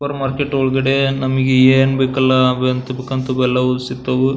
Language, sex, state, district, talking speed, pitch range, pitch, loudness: Kannada, male, Karnataka, Belgaum, 165 wpm, 130-135 Hz, 130 Hz, -16 LUFS